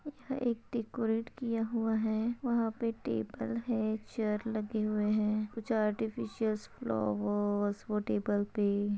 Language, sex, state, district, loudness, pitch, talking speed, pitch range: Hindi, female, Maharashtra, Pune, -34 LUFS, 220 Hz, 135 wpm, 210-230 Hz